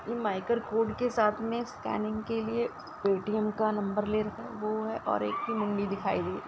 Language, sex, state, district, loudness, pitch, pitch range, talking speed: Hindi, female, Uttar Pradesh, Ghazipur, -31 LUFS, 215 Hz, 210-230 Hz, 215 wpm